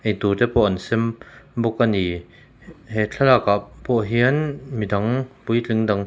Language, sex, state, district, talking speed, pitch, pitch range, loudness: Mizo, male, Mizoram, Aizawl, 170 wpm, 115 Hz, 105-125 Hz, -21 LUFS